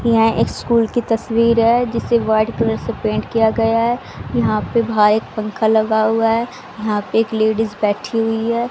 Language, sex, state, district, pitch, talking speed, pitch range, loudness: Hindi, female, Haryana, Rohtak, 225 Hz, 195 wpm, 220-230 Hz, -17 LUFS